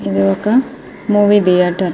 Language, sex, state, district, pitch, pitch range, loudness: Telugu, female, Andhra Pradesh, Srikakulam, 185 Hz, 175-205 Hz, -13 LUFS